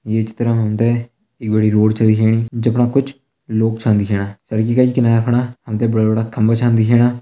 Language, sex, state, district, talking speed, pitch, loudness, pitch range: Hindi, male, Uttarakhand, Tehri Garhwal, 200 wpm, 115 Hz, -16 LUFS, 110-120 Hz